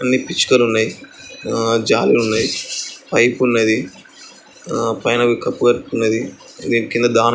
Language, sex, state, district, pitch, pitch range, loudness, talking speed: Telugu, male, Andhra Pradesh, Chittoor, 115 Hz, 115-120 Hz, -17 LUFS, 145 wpm